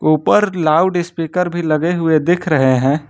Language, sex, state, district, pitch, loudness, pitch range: Hindi, male, Jharkhand, Ranchi, 165 Hz, -15 LUFS, 155-175 Hz